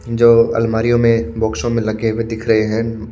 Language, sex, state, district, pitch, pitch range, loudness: Hindi, male, Haryana, Charkhi Dadri, 115 Hz, 110-115 Hz, -16 LUFS